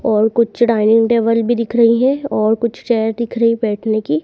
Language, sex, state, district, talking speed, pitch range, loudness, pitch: Hindi, female, Madhya Pradesh, Dhar, 215 wpm, 220-235 Hz, -15 LUFS, 230 Hz